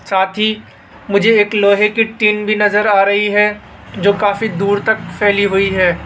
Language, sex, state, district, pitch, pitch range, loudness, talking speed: Hindi, male, Rajasthan, Jaipur, 205 Hz, 200-210 Hz, -13 LUFS, 190 wpm